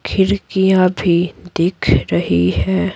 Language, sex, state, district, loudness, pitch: Hindi, female, Bihar, Patna, -16 LUFS, 170 Hz